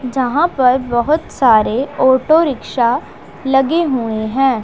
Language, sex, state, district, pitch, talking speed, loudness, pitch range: Hindi, female, Punjab, Pathankot, 260 Hz, 115 wpm, -15 LUFS, 240-285 Hz